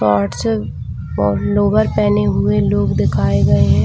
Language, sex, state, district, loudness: Hindi, female, Chhattisgarh, Bilaspur, -16 LUFS